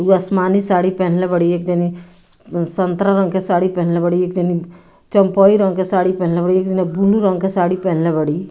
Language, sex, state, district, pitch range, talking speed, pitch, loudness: Bhojpuri, female, Bihar, Muzaffarpur, 175-190 Hz, 205 wpm, 185 Hz, -16 LUFS